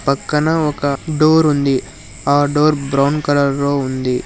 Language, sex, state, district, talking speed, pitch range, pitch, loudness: Telugu, male, Telangana, Hyderabad, 140 wpm, 140-150 Hz, 145 Hz, -16 LUFS